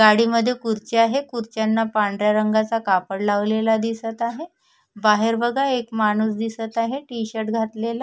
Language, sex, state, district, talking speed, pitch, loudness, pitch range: Marathi, female, Maharashtra, Sindhudurg, 140 wpm, 225 Hz, -21 LUFS, 215-235 Hz